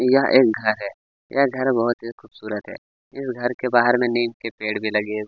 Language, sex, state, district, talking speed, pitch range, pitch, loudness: Hindi, male, Chhattisgarh, Kabirdham, 215 wpm, 110-125 Hz, 120 Hz, -21 LUFS